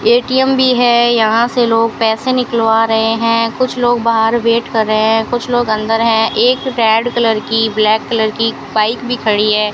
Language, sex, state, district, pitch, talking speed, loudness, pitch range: Hindi, female, Rajasthan, Bikaner, 230 Hz, 195 wpm, -13 LUFS, 220-240 Hz